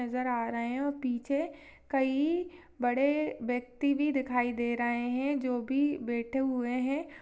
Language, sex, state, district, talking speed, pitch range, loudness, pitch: Hindi, female, Chhattisgarh, Sarguja, 160 wpm, 245-285 Hz, -31 LUFS, 265 Hz